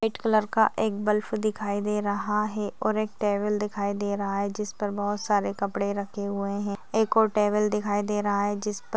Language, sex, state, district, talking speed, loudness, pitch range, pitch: Hindi, female, Maharashtra, Dhule, 220 wpm, -27 LUFS, 200-210 Hz, 210 Hz